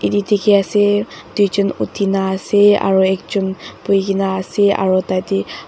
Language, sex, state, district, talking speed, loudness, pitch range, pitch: Nagamese, female, Nagaland, Dimapur, 115 wpm, -16 LUFS, 190-205 Hz, 195 Hz